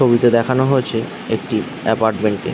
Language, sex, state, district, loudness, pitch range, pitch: Bengali, male, West Bengal, Dakshin Dinajpur, -17 LUFS, 110-125 Hz, 115 Hz